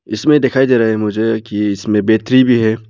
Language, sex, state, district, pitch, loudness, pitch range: Hindi, male, Arunachal Pradesh, Lower Dibang Valley, 110 Hz, -13 LUFS, 110-125 Hz